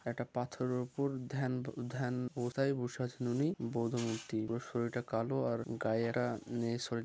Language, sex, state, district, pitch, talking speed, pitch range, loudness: Bengali, male, West Bengal, Jhargram, 120 Hz, 160 wpm, 115-125 Hz, -37 LUFS